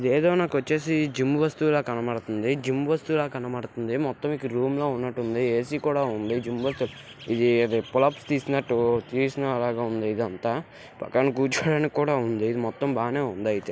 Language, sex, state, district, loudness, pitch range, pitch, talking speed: Telugu, male, Andhra Pradesh, Guntur, -26 LUFS, 120-145 Hz, 130 Hz, 140 wpm